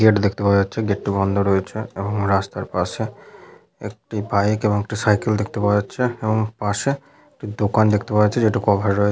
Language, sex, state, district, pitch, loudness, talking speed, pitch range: Bengali, male, West Bengal, Paschim Medinipur, 105 Hz, -20 LUFS, 190 wpm, 100-110 Hz